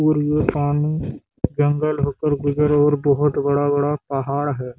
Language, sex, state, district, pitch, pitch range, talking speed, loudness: Hindi, male, Chhattisgarh, Bastar, 145 Hz, 140-150 Hz, 140 wpm, -20 LUFS